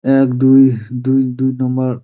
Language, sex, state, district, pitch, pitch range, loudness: Bengali, male, West Bengal, Dakshin Dinajpur, 130 Hz, 125-135 Hz, -14 LUFS